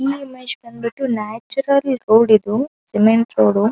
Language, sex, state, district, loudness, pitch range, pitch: Kannada, female, Karnataka, Dharwad, -17 LUFS, 220-270 Hz, 235 Hz